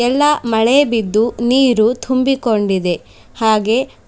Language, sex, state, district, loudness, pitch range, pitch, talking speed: Kannada, female, Karnataka, Bidar, -15 LUFS, 220-260 Hz, 235 Hz, 105 wpm